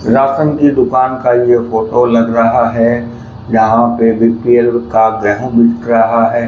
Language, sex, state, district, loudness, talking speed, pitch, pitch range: Hindi, male, Rajasthan, Bikaner, -11 LUFS, 150 wpm, 115 Hz, 115-120 Hz